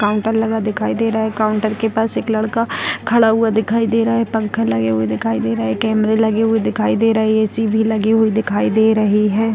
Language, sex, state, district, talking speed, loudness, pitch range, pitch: Hindi, female, Bihar, Darbhanga, 245 wpm, -16 LUFS, 210-225 Hz, 220 Hz